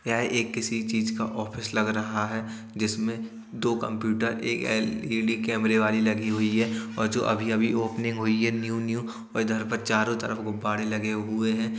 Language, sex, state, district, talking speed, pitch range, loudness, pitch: Hindi, male, Uttar Pradesh, Jalaun, 185 wpm, 110-115 Hz, -27 LUFS, 110 Hz